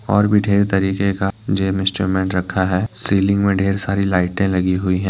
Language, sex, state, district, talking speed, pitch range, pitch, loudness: Hindi, male, Jharkhand, Deoghar, 200 wpm, 95-100 Hz, 95 Hz, -18 LUFS